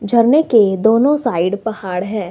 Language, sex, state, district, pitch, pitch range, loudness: Hindi, female, Himachal Pradesh, Shimla, 220 Hz, 195-235 Hz, -15 LUFS